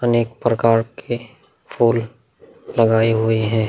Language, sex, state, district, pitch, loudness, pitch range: Hindi, male, Bihar, Vaishali, 115 Hz, -18 LUFS, 115-120 Hz